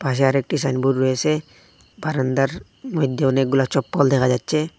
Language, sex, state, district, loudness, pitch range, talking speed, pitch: Bengali, male, Assam, Hailakandi, -20 LUFS, 135-155 Hz, 125 wpm, 135 Hz